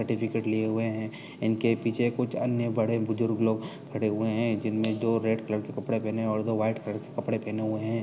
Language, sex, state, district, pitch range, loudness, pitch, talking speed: Hindi, male, Uttar Pradesh, Budaun, 110-115 Hz, -29 LUFS, 110 Hz, 225 wpm